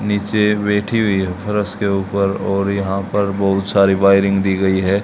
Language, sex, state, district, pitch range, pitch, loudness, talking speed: Hindi, male, Haryana, Charkhi Dadri, 95-105 Hz, 100 Hz, -17 LUFS, 190 wpm